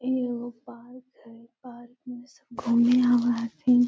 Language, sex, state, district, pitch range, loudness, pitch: Magahi, female, Bihar, Gaya, 235-250 Hz, -24 LUFS, 245 Hz